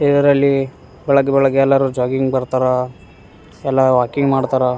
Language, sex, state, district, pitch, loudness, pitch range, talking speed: Kannada, male, Karnataka, Raichur, 135 Hz, -16 LUFS, 125-135 Hz, 115 wpm